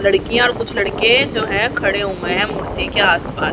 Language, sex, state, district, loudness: Hindi, female, Haryana, Rohtak, -16 LUFS